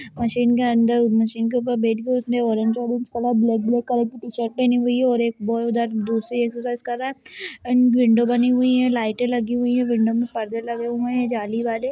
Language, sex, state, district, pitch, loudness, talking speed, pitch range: Hindi, female, Bihar, Gaya, 240 Hz, -21 LUFS, 235 wpm, 230-245 Hz